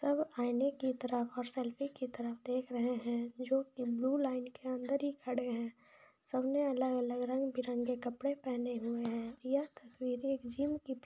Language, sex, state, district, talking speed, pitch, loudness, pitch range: Hindi, female, Jharkhand, Jamtara, 190 wpm, 255 Hz, -37 LUFS, 245-270 Hz